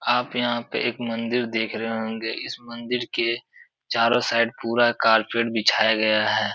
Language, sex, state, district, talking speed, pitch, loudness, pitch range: Hindi, male, Uttar Pradesh, Etah, 165 wpm, 115 Hz, -23 LUFS, 110-120 Hz